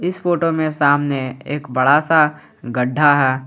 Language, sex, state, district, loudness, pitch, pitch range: Hindi, male, Jharkhand, Garhwa, -17 LUFS, 145 Hz, 130-155 Hz